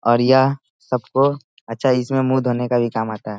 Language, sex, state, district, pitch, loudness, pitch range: Hindi, male, Bihar, Sitamarhi, 125 Hz, -19 LUFS, 120-130 Hz